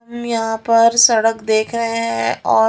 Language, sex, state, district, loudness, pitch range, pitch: Hindi, female, Haryana, Rohtak, -15 LUFS, 220-230 Hz, 225 Hz